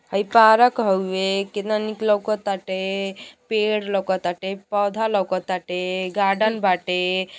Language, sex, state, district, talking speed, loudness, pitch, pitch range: Bhojpuri, female, Uttar Pradesh, Gorakhpur, 95 wpm, -21 LUFS, 195 Hz, 190-215 Hz